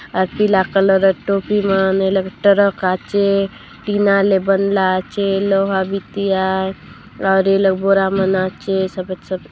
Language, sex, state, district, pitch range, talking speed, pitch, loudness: Halbi, female, Chhattisgarh, Bastar, 190-195 Hz, 130 wpm, 195 Hz, -16 LUFS